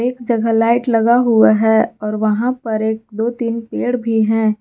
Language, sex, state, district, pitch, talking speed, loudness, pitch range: Hindi, female, Jharkhand, Garhwa, 225 Hz, 180 wpm, -16 LUFS, 220-235 Hz